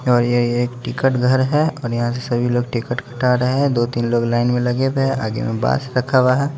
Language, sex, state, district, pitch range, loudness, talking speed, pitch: Hindi, male, Bihar, West Champaran, 120-130 Hz, -18 LUFS, 255 wpm, 125 Hz